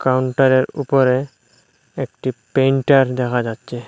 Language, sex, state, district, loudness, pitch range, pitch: Bengali, male, Assam, Hailakandi, -18 LUFS, 125-135 Hz, 130 Hz